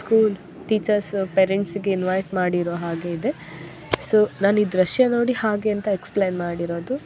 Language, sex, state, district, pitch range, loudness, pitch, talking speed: Kannada, female, Karnataka, Dakshina Kannada, 180-215 Hz, -22 LUFS, 200 Hz, 155 wpm